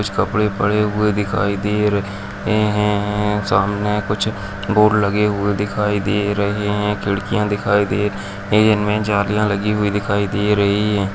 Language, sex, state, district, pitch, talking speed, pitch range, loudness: Kumaoni, male, Uttarakhand, Uttarkashi, 105 Hz, 155 wpm, 100-105 Hz, -18 LUFS